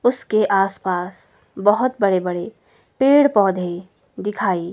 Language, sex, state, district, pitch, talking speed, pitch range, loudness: Hindi, female, Himachal Pradesh, Shimla, 195 Hz, 115 wpm, 185-215 Hz, -19 LUFS